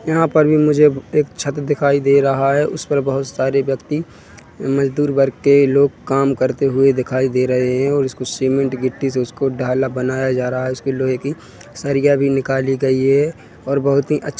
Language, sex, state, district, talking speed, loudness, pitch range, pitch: Hindi, male, Chhattisgarh, Rajnandgaon, 210 wpm, -17 LUFS, 130-140 Hz, 135 Hz